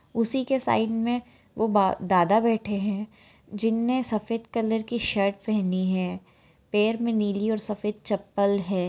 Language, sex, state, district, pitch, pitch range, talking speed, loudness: Hindi, female, Jharkhand, Jamtara, 215 Hz, 200-230 Hz, 140 wpm, -25 LUFS